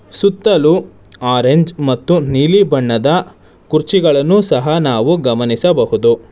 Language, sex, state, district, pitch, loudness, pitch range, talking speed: Kannada, male, Karnataka, Bangalore, 155 Hz, -13 LUFS, 125-185 Hz, 85 wpm